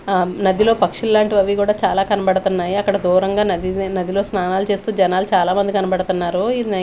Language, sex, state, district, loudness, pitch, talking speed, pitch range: Telugu, female, Andhra Pradesh, Manyam, -17 LUFS, 195 Hz, 160 wpm, 185-205 Hz